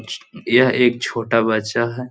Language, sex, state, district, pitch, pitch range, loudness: Hindi, male, Bihar, Jahanabad, 115 Hz, 115-125 Hz, -18 LUFS